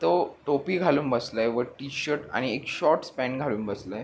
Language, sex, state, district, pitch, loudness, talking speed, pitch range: Marathi, male, Maharashtra, Pune, 135 Hz, -27 LUFS, 180 wpm, 120-145 Hz